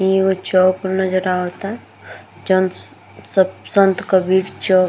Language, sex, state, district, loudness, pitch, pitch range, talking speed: Bhojpuri, female, Bihar, Gopalganj, -17 LUFS, 185 Hz, 185-190 Hz, 135 wpm